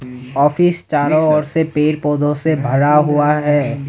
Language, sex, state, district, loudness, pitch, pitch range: Hindi, male, Assam, Sonitpur, -15 LUFS, 150 Hz, 145-155 Hz